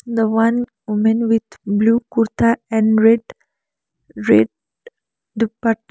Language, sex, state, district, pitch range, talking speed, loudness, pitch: English, female, Sikkim, Gangtok, 220-230 Hz, 100 wpm, -17 LUFS, 225 Hz